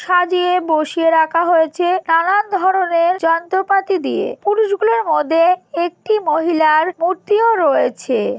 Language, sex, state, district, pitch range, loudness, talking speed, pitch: Bengali, female, West Bengal, Kolkata, 330-390 Hz, -16 LUFS, 100 wpm, 360 Hz